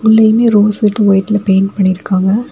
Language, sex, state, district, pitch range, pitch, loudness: Tamil, female, Tamil Nadu, Kanyakumari, 195-220 Hz, 210 Hz, -11 LUFS